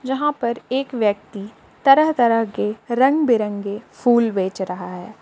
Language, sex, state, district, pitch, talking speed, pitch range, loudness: Hindi, female, Jharkhand, Palamu, 230 Hz, 150 wpm, 200-255 Hz, -19 LUFS